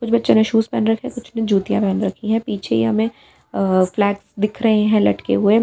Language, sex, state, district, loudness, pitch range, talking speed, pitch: Hindi, female, Delhi, New Delhi, -18 LUFS, 195-225 Hz, 235 wpm, 210 Hz